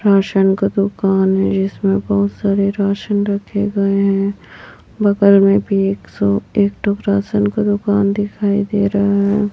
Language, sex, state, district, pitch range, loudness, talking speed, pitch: Hindi, female, Chhattisgarh, Raipur, 195-205 Hz, -16 LUFS, 155 wpm, 200 Hz